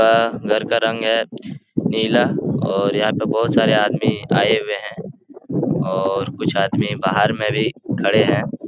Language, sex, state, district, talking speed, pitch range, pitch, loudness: Hindi, male, Bihar, Jahanabad, 160 wpm, 105-115 Hz, 110 Hz, -19 LUFS